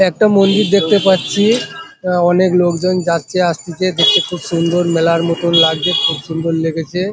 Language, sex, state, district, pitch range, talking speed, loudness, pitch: Bengali, male, West Bengal, Paschim Medinipur, 165-190 Hz, 160 wpm, -14 LUFS, 175 Hz